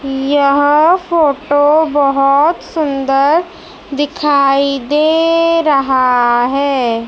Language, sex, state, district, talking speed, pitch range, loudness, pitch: Hindi, female, Madhya Pradesh, Dhar, 70 wpm, 275-315 Hz, -12 LUFS, 285 Hz